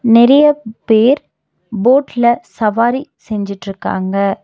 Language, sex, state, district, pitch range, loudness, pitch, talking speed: Tamil, female, Tamil Nadu, Nilgiris, 210-260 Hz, -14 LUFS, 230 Hz, 70 wpm